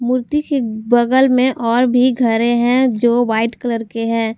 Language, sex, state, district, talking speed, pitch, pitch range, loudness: Hindi, female, Jharkhand, Garhwa, 180 wpm, 240 Hz, 230-255 Hz, -15 LUFS